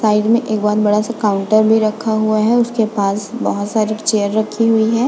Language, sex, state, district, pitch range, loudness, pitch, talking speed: Hindi, female, Uttar Pradesh, Budaun, 210-225 Hz, -15 LUFS, 215 Hz, 210 wpm